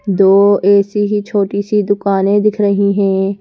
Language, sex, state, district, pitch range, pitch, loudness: Hindi, female, Madhya Pradesh, Bhopal, 200-205 Hz, 200 Hz, -13 LUFS